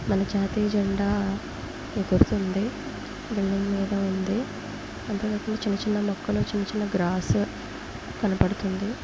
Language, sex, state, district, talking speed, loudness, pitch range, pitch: Telugu, female, Andhra Pradesh, Guntur, 95 wpm, -27 LUFS, 195-210 Hz, 200 Hz